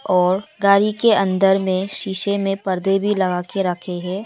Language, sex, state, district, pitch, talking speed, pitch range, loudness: Hindi, female, Arunachal Pradesh, Longding, 195 Hz, 185 wpm, 185-200 Hz, -18 LUFS